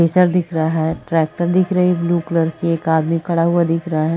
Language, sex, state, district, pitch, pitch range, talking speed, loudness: Hindi, female, Uttar Pradesh, Muzaffarnagar, 165 Hz, 160-175 Hz, 275 wpm, -17 LUFS